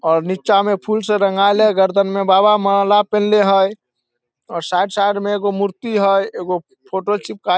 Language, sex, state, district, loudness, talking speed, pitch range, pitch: Maithili, male, Bihar, Samastipur, -16 LUFS, 180 wpm, 190-205 Hz, 200 Hz